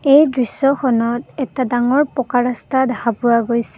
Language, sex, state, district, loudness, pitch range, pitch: Assamese, female, Assam, Kamrup Metropolitan, -17 LUFS, 235-270 Hz, 250 Hz